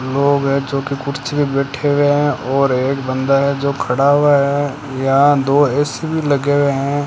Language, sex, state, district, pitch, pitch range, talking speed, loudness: Hindi, male, Rajasthan, Bikaner, 140 Hz, 135-145 Hz, 195 wpm, -16 LUFS